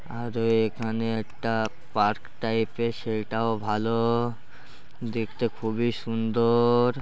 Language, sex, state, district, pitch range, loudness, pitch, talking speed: Bengali, male, West Bengal, Malda, 110-120 Hz, -27 LUFS, 115 Hz, 95 wpm